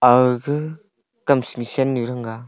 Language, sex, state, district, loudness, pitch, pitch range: Wancho, male, Arunachal Pradesh, Longding, -20 LUFS, 125 Hz, 120-145 Hz